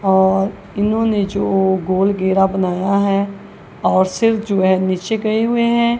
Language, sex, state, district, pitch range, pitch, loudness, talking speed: Hindi, female, Punjab, Kapurthala, 190-215 Hz, 195 Hz, -17 LUFS, 160 wpm